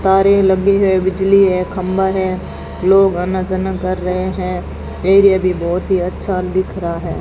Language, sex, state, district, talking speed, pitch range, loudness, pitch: Hindi, female, Rajasthan, Bikaner, 175 wpm, 185-190 Hz, -15 LUFS, 185 Hz